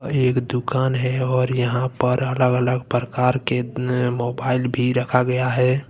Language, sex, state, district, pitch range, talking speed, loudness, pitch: Hindi, male, Jharkhand, Deoghar, 125-130 Hz, 175 wpm, -21 LUFS, 125 Hz